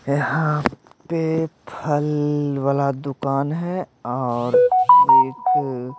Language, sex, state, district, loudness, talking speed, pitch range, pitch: Hindi, male, Odisha, Malkangiri, -19 LUFS, 80 wpm, 140-165 Hz, 150 Hz